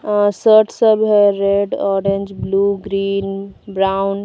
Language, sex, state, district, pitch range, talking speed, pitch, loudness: Hindi, female, Jharkhand, Deoghar, 195-205 Hz, 125 wpm, 200 Hz, -16 LUFS